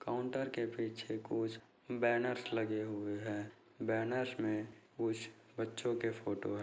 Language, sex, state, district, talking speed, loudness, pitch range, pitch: Hindi, male, Bihar, Bhagalpur, 135 wpm, -39 LUFS, 110-120 Hz, 115 Hz